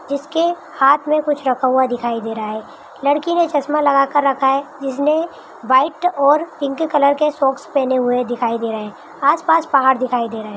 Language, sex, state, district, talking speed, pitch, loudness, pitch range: Hindi, female, Bihar, Araria, 205 wpm, 275 Hz, -17 LUFS, 255-300 Hz